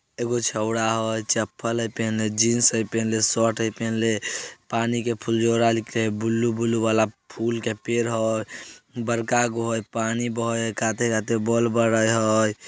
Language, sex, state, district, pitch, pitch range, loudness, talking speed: Maithili, male, Bihar, Samastipur, 115 Hz, 110-115 Hz, -23 LUFS, 165 wpm